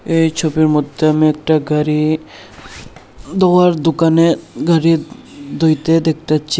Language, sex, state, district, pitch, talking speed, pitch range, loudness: Bengali, male, Tripura, Unakoti, 155 Hz, 100 wpm, 150-165 Hz, -14 LUFS